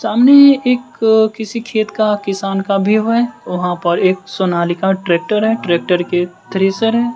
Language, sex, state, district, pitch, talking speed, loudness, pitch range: Hindi, male, Bihar, West Champaran, 205 Hz, 160 wpm, -14 LUFS, 185-225 Hz